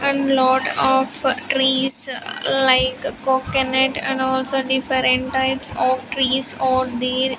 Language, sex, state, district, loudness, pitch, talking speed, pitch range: English, female, Andhra Pradesh, Sri Satya Sai, -18 LUFS, 265 Hz, 115 wpm, 260-265 Hz